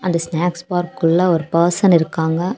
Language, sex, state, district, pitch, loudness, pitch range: Tamil, female, Tamil Nadu, Kanyakumari, 170 Hz, -17 LUFS, 165-180 Hz